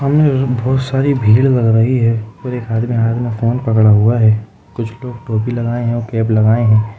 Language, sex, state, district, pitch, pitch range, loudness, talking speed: Hindi, male, Bihar, Gaya, 115 Hz, 110-125 Hz, -14 LUFS, 205 wpm